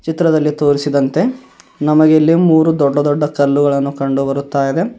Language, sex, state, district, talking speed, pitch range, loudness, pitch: Kannada, male, Karnataka, Bidar, 130 wpm, 140-160 Hz, -14 LUFS, 145 Hz